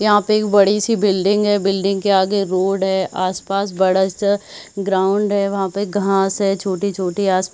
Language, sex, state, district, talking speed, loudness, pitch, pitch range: Hindi, female, Chhattisgarh, Bilaspur, 190 wpm, -17 LUFS, 195 Hz, 190-205 Hz